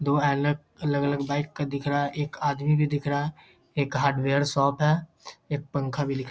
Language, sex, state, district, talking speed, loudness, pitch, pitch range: Hindi, male, Bihar, Muzaffarpur, 220 wpm, -26 LUFS, 145 Hz, 140-145 Hz